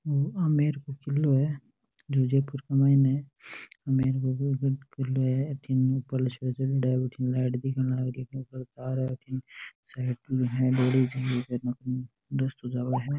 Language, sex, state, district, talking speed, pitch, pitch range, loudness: Marwari, male, Rajasthan, Nagaur, 150 wpm, 130 Hz, 130-135 Hz, -28 LUFS